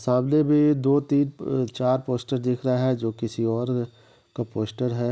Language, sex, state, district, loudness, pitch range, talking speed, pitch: Hindi, male, Bihar, East Champaran, -24 LUFS, 120-135 Hz, 185 wpm, 125 Hz